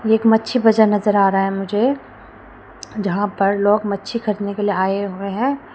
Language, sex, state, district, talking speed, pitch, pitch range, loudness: Hindi, female, Arunachal Pradesh, Lower Dibang Valley, 190 wpm, 205 Hz, 200-220 Hz, -18 LUFS